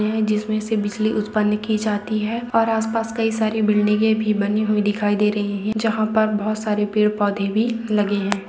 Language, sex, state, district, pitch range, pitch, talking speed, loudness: Hindi, female, Bihar, Vaishali, 210-220 Hz, 215 Hz, 190 wpm, -20 LUFS